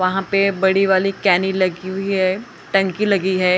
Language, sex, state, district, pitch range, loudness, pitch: Hindi, female, Maharashtra, Gondia, 185-195 Hz, -18 LUFS, 190 Hz